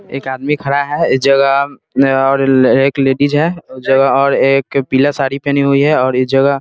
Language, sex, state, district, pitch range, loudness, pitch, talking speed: Hindi, male, Bihar, Muzaffarpur, 135-140 Hz, -13 LUFS, 135 Hz, 210 wpm